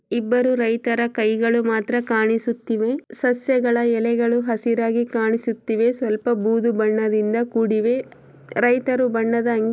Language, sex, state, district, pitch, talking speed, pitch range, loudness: Kannada, female, Karnataka, Chamarajanagar, 235 Hz, 90 wpm, 225-240 Hz, -20 LUFS